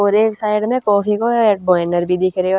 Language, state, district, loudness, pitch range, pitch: Haryanvi, Haryana, Rohtak, -16 LUFS, 185-215 Hz, 205 Hz